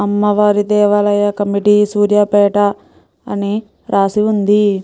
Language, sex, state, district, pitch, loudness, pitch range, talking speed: Telugu, female, Telangana, Nalgonda, 205 Hz, -13 LUFS, 205-210 Hz, 85 wpm